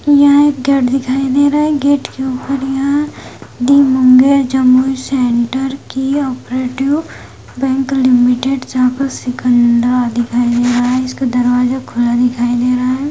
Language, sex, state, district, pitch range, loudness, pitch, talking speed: Hindi, female, Bihar, Jamui, 250-275 Hz, -13 LUFS, 260 Hz, 145 wpm